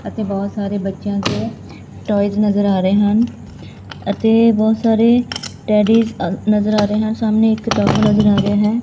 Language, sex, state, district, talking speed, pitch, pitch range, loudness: Punjabi, female, Punjab, Fazilka, 170 wpm, 210 Hz, 205-225 Hz, -16 LUFS